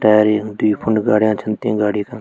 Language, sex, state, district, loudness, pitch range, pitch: Garhwali, male, Uttarakhand, Tehri Garhwal, -17 LUFS, 105-110 Hz, 105 Hz